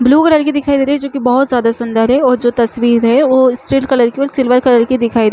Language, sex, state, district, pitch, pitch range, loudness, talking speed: Chhattisgarhi, female, Chhattisgarh, Jashpur, 255 Hz, 240-275 Hz, -12 LUFS, 290 wpm